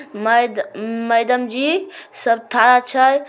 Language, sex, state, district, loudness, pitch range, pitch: Maithili, male, Bihar, Samastipur, -17 LUFS, 230-265 Hz, 245 Hz